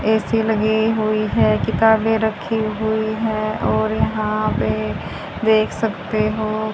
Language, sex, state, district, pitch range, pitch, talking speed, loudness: Hindi, female, Haryana, Jhajjar, 215-220 Hz, 215 Hz, 125 wpm, -19 LUFS